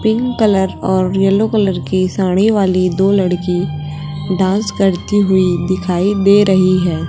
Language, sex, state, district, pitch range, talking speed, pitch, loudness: Hindi, male, Chhattisgarh, Raipur, 180-200 Hz, 145 wpm, 190 Hz, -14 LUFS